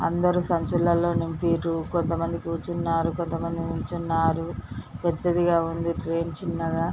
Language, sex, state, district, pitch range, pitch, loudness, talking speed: Telugu, female, Telangana, Nalgonda, 165-170 Hz, 170 Hz, -26 LUFS, 120 wpm